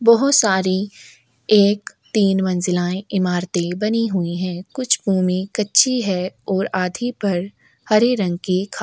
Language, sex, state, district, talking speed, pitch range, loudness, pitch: Hindi, female, Chhattisgarh, Korba, 135 wpm, 185-215 Hz, -19 LUFS, 195 Hz